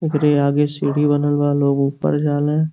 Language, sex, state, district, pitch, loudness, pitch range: Bhojpuri, male, Uttar Pradesh, Gorakhpur, 145 Hz, -18 LUFS, 145-150 Hz